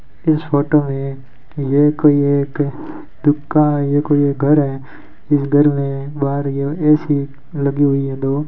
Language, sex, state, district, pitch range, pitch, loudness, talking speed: Hindi, male, Rajasthan, Bikaner, 140-150 Hz, 145 Hz, -16 LUFS, 150 wpm